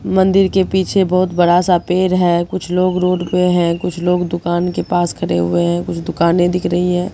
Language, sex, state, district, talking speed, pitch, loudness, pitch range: Hindi, female, Bihar, Katihar, 220 wpm, 180 Hz, -15 LUFS, 175-185 Hz